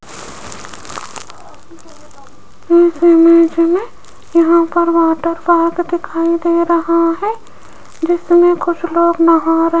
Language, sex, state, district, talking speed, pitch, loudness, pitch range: Hindi, female, Rajasthan, Jaipur, 100 wpm, 335 Hz, -13 LUFS, 335-345 Hz